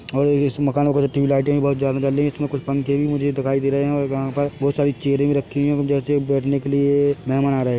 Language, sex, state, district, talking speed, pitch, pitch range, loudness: Hindi, male, Chhattisgarh, Bilaspur, 300 wpm, 140 Hz, 140-145 Hz, -20 LUFS